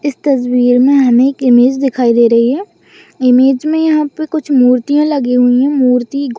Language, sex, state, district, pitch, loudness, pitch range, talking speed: Hindi, female, West Bengal, Dakshin Dinajpur, 260 Hz, -11 LUFS, 250-285 Hz, 195 wpm